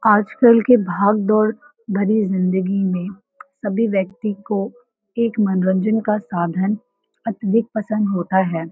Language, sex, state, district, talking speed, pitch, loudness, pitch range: Hindi, female, Uttar Pradesh, Varanasi, 125 wpm, 210 Hz, -19 LUFS, 190-220 Hz